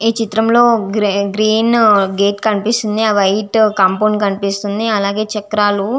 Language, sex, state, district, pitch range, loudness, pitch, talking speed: Telugu, female, Andhra Pradesh, Visakhapatnam, 200-220 Hz, -14 LUFS, 210 Hz, 150 wpm